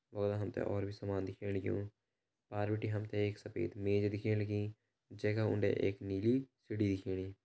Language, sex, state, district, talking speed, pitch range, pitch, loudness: Garhwali, male, Uttarakhand, Uttarkashi, 185 wpm, 100-110 Hz, 105 Hz, -38 LUFS